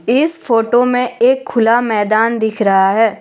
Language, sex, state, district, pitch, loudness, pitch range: Hindi, female, Jharkhand, Deoghar, 230 Hz, -13 LUFS, 220-250 Hz